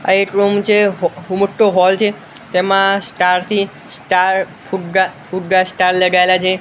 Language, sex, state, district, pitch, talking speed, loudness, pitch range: Gujarati, male, Gujarat, Gandhinagar, 190 Hz, 145 wpm, -15 LUFS, 185-200 Hz